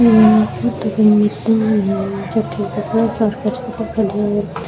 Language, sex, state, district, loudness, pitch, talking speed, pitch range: Rajasthani, female, Rajasthan, Churu, -16 LUFS, 210 Hz, 155 wpm, 205-225 Hz